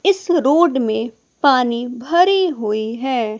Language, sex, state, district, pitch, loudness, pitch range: Hindi, female, Bihar, West Champaran, 255 Hz, -17 LUFS, 230-340 Hz